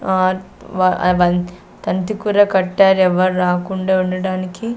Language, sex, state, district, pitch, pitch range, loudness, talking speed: Telugu, female, Andhra Pradesh, Sri Satya Sai, 185 Hz, 185-190 Hz, -16 LUFS, 125 wpm